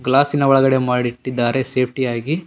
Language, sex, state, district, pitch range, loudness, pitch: Kannada, male, Karnataka, Bellary, 125-135 Hz, -18 LUFS, 130 Hz